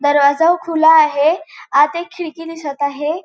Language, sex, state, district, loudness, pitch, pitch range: Marathi, female, Goa, North and South Goa, -15 LUFS, 315 Hz, 290-335 Hz